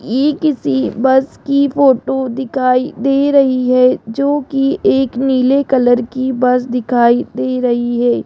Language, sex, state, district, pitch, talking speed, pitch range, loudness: Hindi, female, Rajasthan, Jaipur, 260 Hz, 145 wpm, 250-275 Hz, -14 LUFS